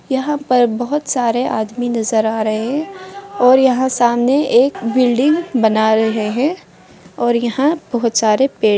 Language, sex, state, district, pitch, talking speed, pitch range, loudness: Hindi, female, Bihar, Madhepura, 245 Hz, 155 wpm, 225-275 Hz, -15 LUFS